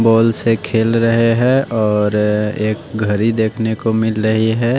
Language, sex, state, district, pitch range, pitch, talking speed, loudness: Hindi, male, Odisha, Nuapada, 110-115 Hz, 110 Hz, 165 wpm, -15 LUFS